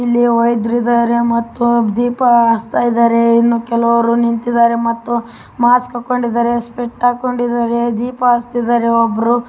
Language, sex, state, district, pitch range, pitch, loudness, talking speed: Kannada, female, Karnataka, Raichur, 235-240 Hz, 235 Hz, -14 LUFS, 105 wpm